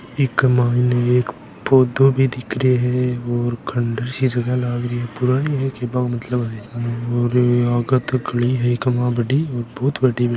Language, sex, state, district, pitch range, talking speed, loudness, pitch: Hindi, male, Rajasthan, Nagaur, 120-130 Hz, 190 wpm, -19 LUFS, 125 Hz